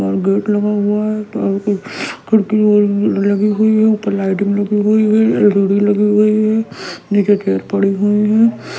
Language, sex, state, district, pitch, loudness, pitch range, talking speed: Hindi, female, Delhi, New Delhi, 205 Hz, -14 LUFS, 200-215 Hz, 170 wpm